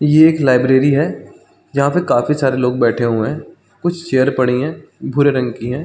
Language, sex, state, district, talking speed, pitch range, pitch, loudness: Hindi, male, Chhattisgarh, Balrampur, 205 wpm, 125-150 Hz, 135 Hz, -15 LUFS